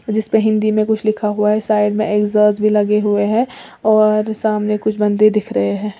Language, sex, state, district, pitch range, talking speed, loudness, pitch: Hindi, female, Uttar Pradesh, Lalitpur, 210-215 Hz, 200 wpm, -16 LUFS, 215 Hz